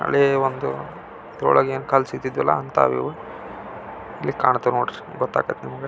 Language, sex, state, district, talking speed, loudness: Kannada, male, Karnataka, Belgaum, 70 wpm, -21 LUFS